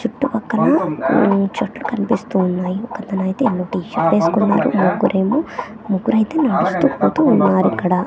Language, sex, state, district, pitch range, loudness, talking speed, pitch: Telugu, female, Andhra Pradesh, Manyam, 190-240 Hz, -17 LUFS, 110 wpm, 210 Hz